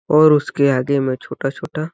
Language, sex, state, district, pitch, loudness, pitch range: Hindi, male, Chhattisgarh, Balrampur, 140 Hz, -17 LUFS, 135-155 Hz